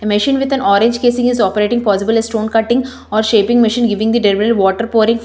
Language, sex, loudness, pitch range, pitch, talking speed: English, female, -13 LUFS, 210-240 Hz, 225 Hz, 215 wpm